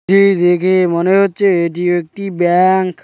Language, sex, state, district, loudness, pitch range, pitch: Bengali, male, West Bengal, Cooch Behar, -13 LUFS, 175-195 Hz, 185 Hz